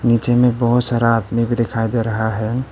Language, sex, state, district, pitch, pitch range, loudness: Hindi, male, Arunachal Pradesh, Papum Pare, 115 Hz, 115-120 Hz, -17 LUFS